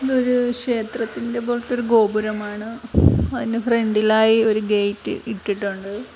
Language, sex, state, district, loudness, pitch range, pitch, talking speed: Malayalam, female, Kerala, Kollam, -20 LUFS, 215-240 Hz, 225 Hz, 95 wpm